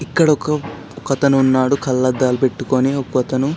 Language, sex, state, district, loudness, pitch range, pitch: Telugu, male, Telangana, Karimnagar, -17 LUFS, 130-140 Hz, 130 Hz